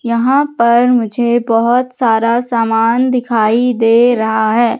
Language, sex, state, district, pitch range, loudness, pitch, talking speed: Hindi, female, Madhya Pradesh, Katni, 225-245 Hz, -12 LUFS, 235 Hz, 125 wpm